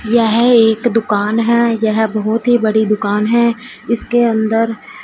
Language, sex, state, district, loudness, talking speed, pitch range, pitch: Hindi, female, Punjab, Fazilka, -14 LUFS, 145 wpm, 220-235 Hz, 225 Hz